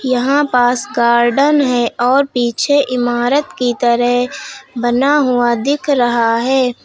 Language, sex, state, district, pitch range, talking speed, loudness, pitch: Hindi, female, Uttar Pradesh, Lucknow, 240-275 Hz, 120 wpm, -14 LUFS, 250 Hz